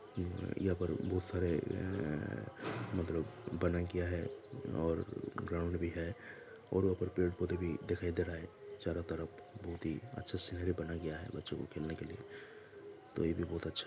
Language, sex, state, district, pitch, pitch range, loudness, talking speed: Hindi, male, Jharkhand, Jamtara, 90 Hz, 85-100 Hz, -39 LUFS, 185 wpm